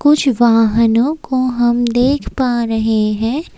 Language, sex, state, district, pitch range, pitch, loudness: Hindi, female, Assam, Kamrup Metropolitan, 225-265 Hz, 240 Hz, -14 LUFS